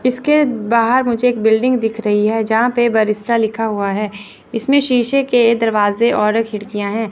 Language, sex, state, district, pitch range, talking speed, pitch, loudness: Hindi, female, Chandigarh, Chandigarh, 210-245 Hz, 175 wpm, 225 Hz, -15 LUFS